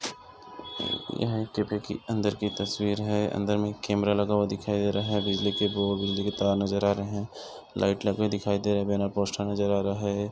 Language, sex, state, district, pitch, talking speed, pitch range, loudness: Hindi, male, Goa, North and South Goa, 100 Hz, 230 wpm, 100-105 Hz, -28 LUFS